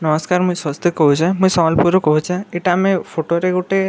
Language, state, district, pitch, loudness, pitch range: Sambalpuri, Odisha, Sambalpur, 175 Hz, -16 LUFS, 160-185 Hz